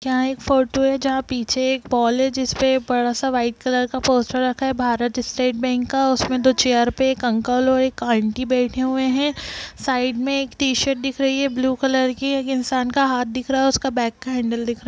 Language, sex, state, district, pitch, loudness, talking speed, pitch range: Hindi, female, Bihar, Jamui, 260 Hz, -20 LUFS, 230 wpm, 245-265 Hz